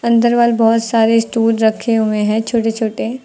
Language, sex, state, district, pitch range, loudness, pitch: Hindi, female, Uttar Pradesh, Lucknow, 220-235 Hz, -14 LUFS, 225 Hz